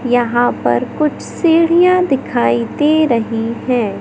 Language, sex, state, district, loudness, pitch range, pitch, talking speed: Hindi, male, Madhya Pradesh, Katni, -14 LUFS, 230-310 Hz, 245 Hz, 120 wpm